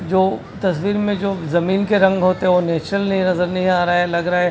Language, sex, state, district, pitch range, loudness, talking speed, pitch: Hindi, male, Chhattisgarh, Raipur, 175-195 Hz, -18 LUFS, 265 wpm, 185 Hz